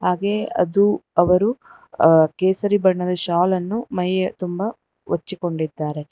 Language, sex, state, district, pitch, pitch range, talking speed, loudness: Kannada, female, Karnataka, Bangalore, 185 Hz, 175-205 Hz, 100 wpm, -20 LUFS